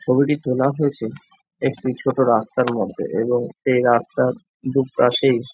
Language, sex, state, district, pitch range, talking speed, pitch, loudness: Bengali, male, West Bengal, Jhargram, 120-140 Hz, 140 wpm, 130 Hz, -20 LUFS